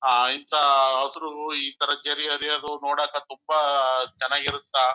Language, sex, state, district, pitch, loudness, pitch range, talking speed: Kannada, male, Karnataka, Chamarajanagar, 145 Hz, -23 LUFS, 135-150 Hz, 120 wpm